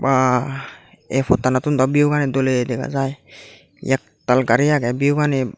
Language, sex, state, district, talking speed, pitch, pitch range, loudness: Chakma, male, Tripura, Dhalai, 140 wpm, 135 Hz, 130-145 Hz, -19 LUFS